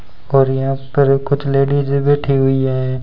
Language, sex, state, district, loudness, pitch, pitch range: Hindi, male, Rajasthan, Bikaner, -15 LUFS, 135 Hz, 135-140 Hz